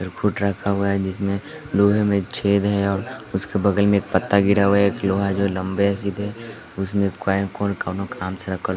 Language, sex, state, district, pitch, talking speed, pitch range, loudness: Hindi, male, Bihar, West Champaran, 100 Hz, 185 wpm, 95-100 Hz, -21 LUFS